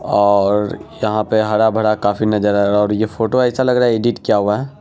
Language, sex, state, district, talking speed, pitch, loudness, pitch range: Hindi, male, Bihar, Araria, 260 wpm, 110 Hz, -16 LUFS, 105-110 Hz